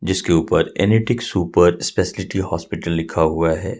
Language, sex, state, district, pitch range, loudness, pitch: Hindi, male, Jharkhand, Ranchi, 80-95 Hz, -19 LUFS, 90 Hz